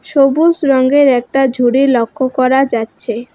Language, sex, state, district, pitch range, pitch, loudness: Bengali, female, West Bengal, Alipurduar, 245-275 Hz, 265 Hz, -12 LUFS